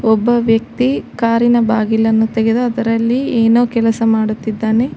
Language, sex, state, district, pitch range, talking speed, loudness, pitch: Kannada, female, Karnataka, Koppal, 225-240 Hz, 120 wpm, -14 LUFS, 230 Hz